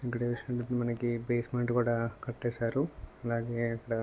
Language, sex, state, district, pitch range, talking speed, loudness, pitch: Telugu, male, Telangana, Nalgonda, 115-120 Hz, 135 wpm, -33 LUFS, 120 Hz